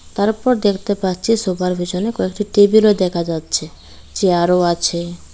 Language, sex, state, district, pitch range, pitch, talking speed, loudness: Bengali, female, Tripura, Dhalai, 175-210 Hz, 185 Hz, 155 wpm, -17 LUFS